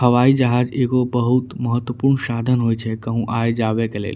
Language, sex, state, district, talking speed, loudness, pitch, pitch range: Angika, male, Bihar, Bhagalpur, 190 wpm, -19 LUFS, 120 Hz, 115-125 Hz